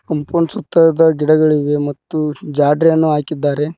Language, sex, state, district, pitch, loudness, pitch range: Kannada, male, Karnataka, Koppal, 155 Hz, -15 LUFS, 150-165 Hz